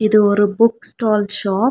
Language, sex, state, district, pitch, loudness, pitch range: Tamil, female, Tamil Nadu, Nilgiris, 215 Hz, -16 LUFS, 205-225 Hz